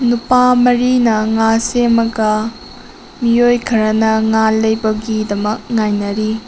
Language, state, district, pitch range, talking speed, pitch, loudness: Manipuri, Manipur, Imphal West, 215-240 Hz, 85 wpm, 220 Hz, -14 LUFS